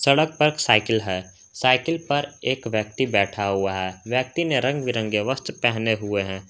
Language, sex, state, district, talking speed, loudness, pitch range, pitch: Hindi, male, Jharkhand, Garhwa, 175 wpm, -22 LUFS, 100-140 Hz, 115 Hz